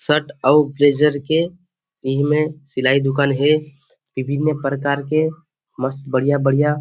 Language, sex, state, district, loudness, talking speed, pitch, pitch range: Chhattisgarhi, male, Chhattisgarh, Rajnandgaon, -18 LUFS, 140 wpm, 145 Hz, 140-155 Hz